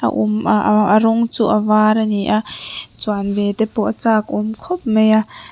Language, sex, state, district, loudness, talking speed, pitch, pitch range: Mizo, female, Mizoram, Aizawl, -16 LUFS, 195 wpm, 215 Hz, 210-220 Hz